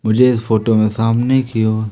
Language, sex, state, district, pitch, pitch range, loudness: Hindi, male, Madhya Pradesh, Umaria, 110 Hz, 110-125 Hz, -15 LUFS